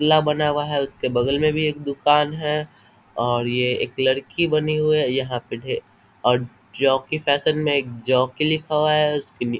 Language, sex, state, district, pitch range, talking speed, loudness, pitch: Hindi, male, Bihar, Vaishali, 125-150 Hz, 215 wpm, -21 LUFS, 145 Hz